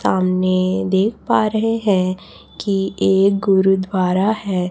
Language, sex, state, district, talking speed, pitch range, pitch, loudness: Hindi, female, Chhattisgarh, Raipur, 115 wpm, 185-200 Hz, 190 Hz, -17 LUFS